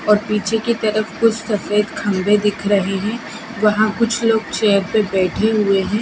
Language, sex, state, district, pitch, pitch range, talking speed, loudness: Hindi, female, Bihar, Katihar, 215 Hz, 205-225 Hz, 180 wpm, -17 LUFS